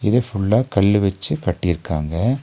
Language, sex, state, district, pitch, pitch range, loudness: Tamil, male, Tamil Nadu, Nilgiris, 100 Hz, 90-110 Hz, -19 LUFS